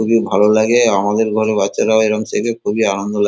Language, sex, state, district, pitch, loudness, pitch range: Bengali, male, West Bengal, Kolkata, 110 Hz, -15 LUFS, 105-110 Hz